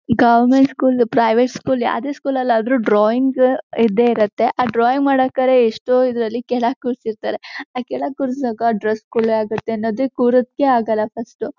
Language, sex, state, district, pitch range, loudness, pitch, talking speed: Kannada, female, Karnataka, Shimoga, 230-260 Hz, -17 LUFS, 245 Hz, 150 wpm